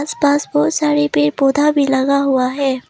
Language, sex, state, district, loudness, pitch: Hindi, female, Arunachal Pradesh, Lower Dibang Valley, -15 LUFS, 270 Hz